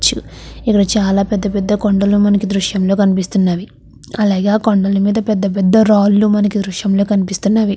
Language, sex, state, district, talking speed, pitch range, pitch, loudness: Telugu, female, Andhra Pradesh, Chittoor, 145 wpm, 195-210 Hz, 200 Hz, -14 LUFS